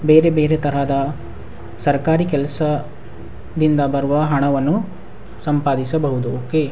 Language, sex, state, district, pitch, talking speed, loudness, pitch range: Kannada, male, Karnataka, Raichur, 145 Hz, 100 wpm, -18 LUFS, 140-155 Hz